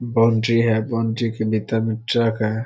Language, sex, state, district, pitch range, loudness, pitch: Hindi, male, Bihar, Saharsa, 110-115 Hz, -20 LUFS, 115 Hz